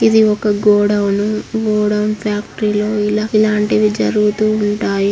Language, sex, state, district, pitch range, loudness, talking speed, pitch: Telugu, female, Andhra Pradesh, Srikakulam, 205-215 Hz, -15 LUFS, 105 wpm, 210 Hz